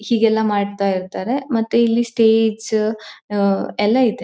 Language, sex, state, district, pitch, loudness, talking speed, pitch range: Kannada, female, Karnataka, Dakshina Kannada, 220 Hz, -18 LUFS, 115 wpm, 205-230 Hz